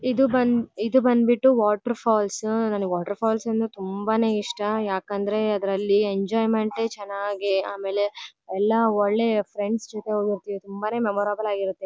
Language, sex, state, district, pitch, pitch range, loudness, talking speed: Kannada, female, Karnataka, Bellary, 210 Hz, 200-225 Hz, -24 LUFS, 120 wpm